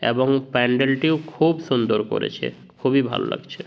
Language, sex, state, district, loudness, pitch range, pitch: Bengali, male, West Bengal, Jhargram, -21 LUFS, 125-145 Hz, 130 Hz